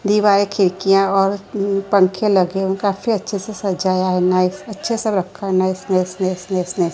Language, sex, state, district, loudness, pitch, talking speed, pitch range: Hindi, female, Gujarat, Gandhinagar, -18 LUFS, 195 Hz, 200 wpm, 185-200 Hz